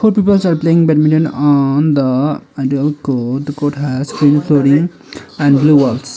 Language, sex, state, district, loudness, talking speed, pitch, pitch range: English, male, Sikkim, Gangtok, -13 LUFS, 145 wpm, 145 Hz, 140-155 Hz